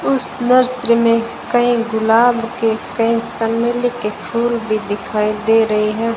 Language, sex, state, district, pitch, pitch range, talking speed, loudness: Hindi, female, Rajasthan, Bikaner, 230 Hz, 215-240 Hz, 145 wpm, -16 LUFS